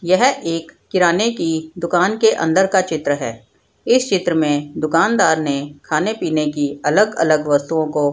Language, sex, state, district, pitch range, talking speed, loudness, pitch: Hindi, female, Bihar, Madhepura, 145-180 Hz, 160 wpm, -17 LUFS, 160 Hz